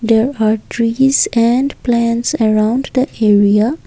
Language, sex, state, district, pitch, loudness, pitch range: English, female, Assam, Kamrup Metropolitan, 235 Hz, -14 LUFS, 220-260 Hz